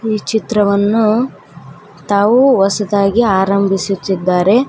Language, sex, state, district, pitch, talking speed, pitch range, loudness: Kannada, female, Karnataka, Koppal, 205 Hz, 65 wpm, 195-220 Hz, -13 LUFS